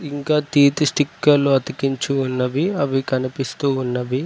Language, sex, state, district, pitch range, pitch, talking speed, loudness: Telugu, male, Telangana, Mahabubabad, 130-145 Hz, 140 Hz, 115 wpm, -19 LUFS